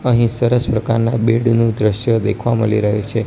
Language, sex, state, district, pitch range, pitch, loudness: Gujarati, male, Gujarat, Gandhinagar, 110-120 Hz, 115 Hz, -16 LUFS